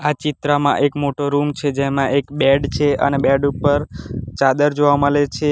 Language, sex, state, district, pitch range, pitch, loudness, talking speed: Gujarati, male, Gujarat, Valsad, 140-145 Hz, 145 Hz, -17 LUFS, 185 wpm